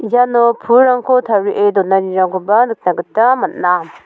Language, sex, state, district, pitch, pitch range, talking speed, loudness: Garo, female, Meghalaya, South Garo Hills, 220 Hz, 190-245 Hz, 105 wpm, -13 LUFS